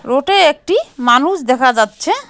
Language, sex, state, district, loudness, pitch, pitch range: Bengali, female, West Bengal, Cooch Behar, -13 LUFS, 275 Hz, 250-365 Hz